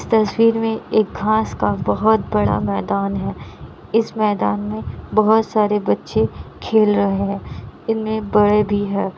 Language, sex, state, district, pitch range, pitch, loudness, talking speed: Hindi, female, Bihar, Kishanganj, 195-220 Hz, 210 Hz, -18 LUFS, 145 wpm